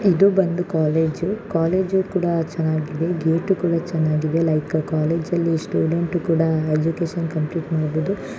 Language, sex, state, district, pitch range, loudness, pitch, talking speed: Kannada, female, Karnataka, Shimoga, 160-175 Hz, -21 LUFS, 165 Hz, 120 wpm